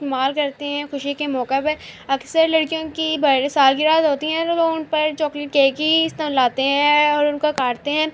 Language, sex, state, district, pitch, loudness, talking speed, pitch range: Urdu, female, Andhra Pradesh, Anantapur, 295 Hz, -19 LUFS, 185 wpm, 280-310 Hz